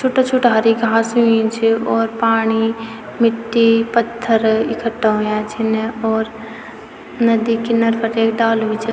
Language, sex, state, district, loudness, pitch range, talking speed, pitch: Garhwali, female, Uttarakhand, Tehri Garhwal, -16 LUFS, 225-230 Hz, 135 wpm, 225 Hz